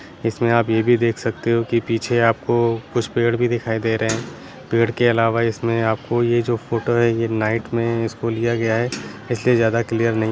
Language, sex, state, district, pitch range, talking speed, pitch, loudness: Hindi, male, Bihar, Saran, 115-120 Hz, 220 wpm, 115 Hz, -20 LUFS